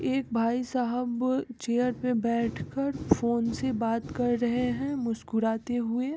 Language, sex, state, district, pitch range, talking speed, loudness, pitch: Hindi, female, Bihar, East Champaran, 235-255 Hz, 125 wpm, -29 LUFS, 245 Hz